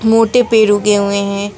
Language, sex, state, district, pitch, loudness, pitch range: Hindi, female, West Bengal, Alipurduar, 205 Hz, -12 LUFS, 200-225 Hz